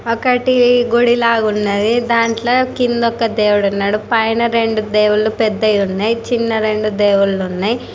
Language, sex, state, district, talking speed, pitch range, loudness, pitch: Telugu, female, Telangana, Karimnagar, 135 wpm, 210-235 Hz, -15 LUFS, 225 Hz